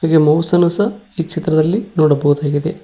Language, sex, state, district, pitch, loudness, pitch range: Kannada, male, Karnataka, Koppal, 165 Hz, -15 LUFS, 155-180 Hz